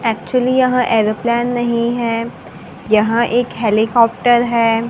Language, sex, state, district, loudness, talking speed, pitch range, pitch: Hindi, female, Maharashtra, Gondia, -15 LUFS, 110 wpm, 225-240 Hz, 235 Hz